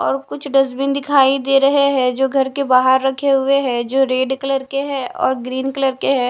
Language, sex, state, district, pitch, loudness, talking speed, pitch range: Hindi, female, Delhi, New Delhi, 270 Hz, -17 LUFS, 230 wpm, 260-275 Hz